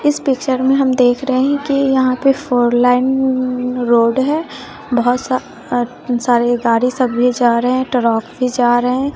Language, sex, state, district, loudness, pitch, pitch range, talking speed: Hindi, female, Bihar, West Champaran, -15 LUFS, 255 Hz, 245-265 Hz, 190 wpm